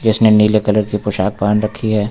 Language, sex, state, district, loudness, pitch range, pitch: Hindi, male, Uttar Pradesh, Lucknow, -15 LUFS, 105-110 Hz, 105 Hz